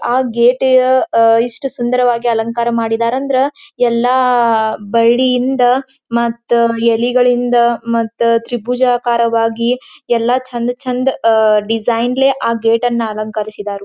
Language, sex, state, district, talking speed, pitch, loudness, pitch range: Kannada, female, Karnataka, Belgaum, 110 wpm, 235 Hz, -14 LUFS, 230-250 Hz